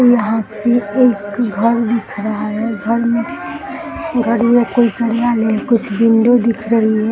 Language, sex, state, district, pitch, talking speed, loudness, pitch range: Hindi, male, Bihar, East Champaran, 230 Hz, 135 wpm, -15 LUFS, 220-235 Hz